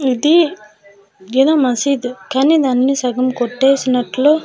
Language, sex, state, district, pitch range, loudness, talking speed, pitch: Telugu, female, Andhra Pradesh, Manyam, 245-275 Hz, -15 LUFS, 95 wpm, 260 Hz